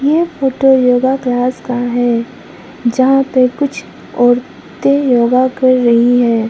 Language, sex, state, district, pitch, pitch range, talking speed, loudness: Hindi, female, Arunachal Pradesh, Lower Dibang Valley, 255 Hz, 245-270 Hz, 130 wpm, -13 LUFS